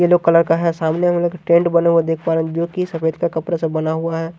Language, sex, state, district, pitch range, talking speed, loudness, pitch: Hindi, male, Haryana, Jhajjar, 160-170 Hz, 300 wpm, -17 LUFS, 165 Hz